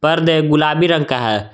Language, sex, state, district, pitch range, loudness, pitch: Hindi, male, Jharkhand, Garhwa, 130-165 Hz, -15 LUFS, 155 Hz